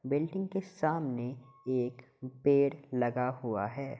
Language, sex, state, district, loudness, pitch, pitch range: Hindi, male, Uttar Pradesh, Hamirpur, -33 LUFS, 135 Hz, 125-145 Hz